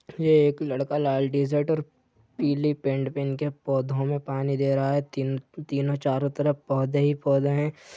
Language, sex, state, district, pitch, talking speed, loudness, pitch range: Hindi, male, Jharkhand, Sahebganj, 140 Hz, 180 wpm, -25 LUFS, 135-145 Hz